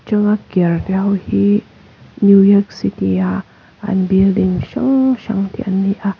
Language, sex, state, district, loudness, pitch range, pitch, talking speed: Mizo, female, Mizoram, Aizawl, -15 LUFS, 190-210 Hz, 200 Hz, 135 wpm